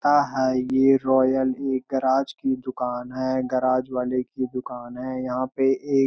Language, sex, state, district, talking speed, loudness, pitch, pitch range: Hindi, male, Uttarakhand, Uttarkashi, 170 wpm, -23 LUFS, 130 Hz, 130-135 Hz